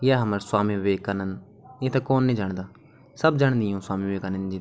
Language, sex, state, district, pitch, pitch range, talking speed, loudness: Garhwali, male, Uttarakhand, Tehri Garhwal, 105 Hz, 95-130 Hz, 220 wpm, -25 LUFS